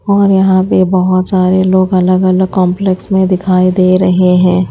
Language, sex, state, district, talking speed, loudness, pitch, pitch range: Hindi, female, Odisha, Malkangiri, 180 wpm, -10 LUFS, 185 Hz, 185-190 Hz